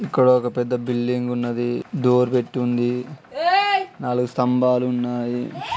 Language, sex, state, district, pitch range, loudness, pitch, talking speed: Telugu, male, Andhra Pradesh, Srikakulam, 120-125 Hz, -21 LUFS, 125 Hz, 125 wpm